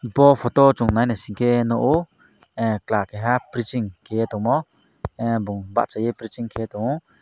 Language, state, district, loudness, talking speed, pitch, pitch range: Kokborok, Tripura, Dhalai, -21 LUFS, 150 wpm, 115 Hz, 110-120 Hz